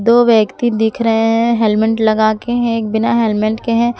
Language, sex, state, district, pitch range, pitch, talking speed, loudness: Hindi, female, Jharkhand, Palamu, 220-235 Hz, 225 Hz, 195 wpm, -14 LUFS